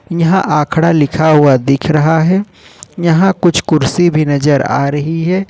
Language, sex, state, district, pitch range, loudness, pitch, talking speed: Hindi, male, Jharkhand, Ranchi, 150-175 Hz, -12 LUFS, 160 Hz, 165 wpm